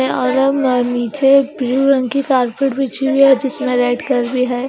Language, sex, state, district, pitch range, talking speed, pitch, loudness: Hindi, female, Chandigarh, Chandigarh, 250-275 Hz, 165 wpm, 265 Hz, -15 LUFS